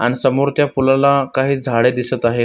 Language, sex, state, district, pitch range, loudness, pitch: Marathi, male, Maharashtra, Solapur, 125-140 Hz, -16 LUFS, 130 Hz